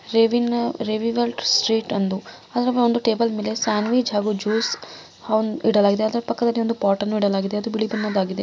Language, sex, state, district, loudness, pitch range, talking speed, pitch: Kannada, female, Karnataka, Mysore, -21 LUFS, 210-235 Hz, 140 wpm, 220 Hz